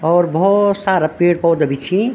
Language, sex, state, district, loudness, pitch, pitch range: Garhwali, female, Uttarakhand, Tehri Garhwal, -15 LUFS, 175 Hz, 160-195 Hz